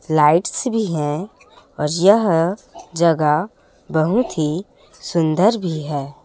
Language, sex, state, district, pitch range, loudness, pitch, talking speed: Hindi, female, Chhattisgarh, Raipur, 155-200 Hz, -18 LUFS, 165 Hz, 105 wpm